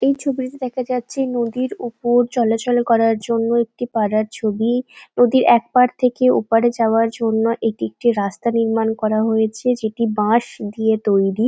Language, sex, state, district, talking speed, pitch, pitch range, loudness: Bengali, female, West Bengal, Jalpaiguri, 150 wpm, 230 Hz, 220-245 Hz, -18 LUFS